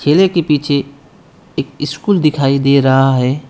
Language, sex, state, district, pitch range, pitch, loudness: Hindi, male, West Bengal, Alipurduar, 135-155 Hz, 145 Hz, -13 LUFS